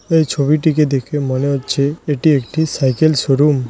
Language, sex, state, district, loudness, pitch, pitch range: Bengali, male, West Bengal, Cooch Behar, -15 LUFS, 145 Hz, 135-155 Hz